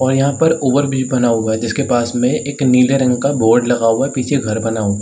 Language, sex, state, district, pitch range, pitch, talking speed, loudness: Hindi, male, Uttar Pradesh, Varanasi, 115-135 Hz, 125 Hz, 285 wpm, -15 LUFS